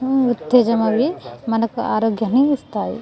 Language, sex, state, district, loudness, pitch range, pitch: Telugu, female, Telangana, Nalgonda, -18 LUFS, 225-265 Hz, 240 Hz